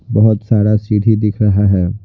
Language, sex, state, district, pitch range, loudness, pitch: Hindi, male, Bihar, Patna, 100-110 Hz, -13 LUFS, 105 Hz